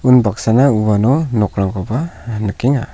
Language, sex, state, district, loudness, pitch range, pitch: Garo, male, Meghalaya, South Garo Hills, -15 LUFS, 105-130 Hz, 115 Hz